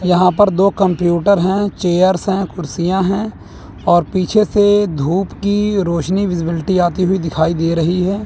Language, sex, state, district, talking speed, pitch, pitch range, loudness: Hindi, male, Chandigarh, Chandigarh, 160 wpm, 185 Hz, 175-200 Hz, -15 LUFS